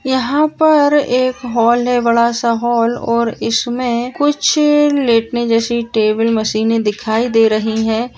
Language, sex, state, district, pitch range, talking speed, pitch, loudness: Hindi, female, Bihar, Purnia, 225-255 Hz, 140 wpm, 235 Hz, -14 LUFS